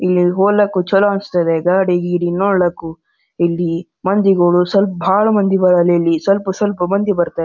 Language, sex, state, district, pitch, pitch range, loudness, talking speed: Kannada, male, Karnataka, Gulbarga, 180 Hz, 175-195 Hz, -15 LUFS, 130 wpm